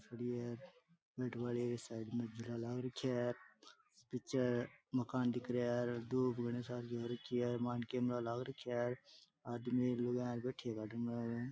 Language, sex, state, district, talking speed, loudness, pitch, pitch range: Rajasthani, male, Rajasthan, Nagaur, 50 wpm, -41 LUFS, 120 Hz, 120-125 Hz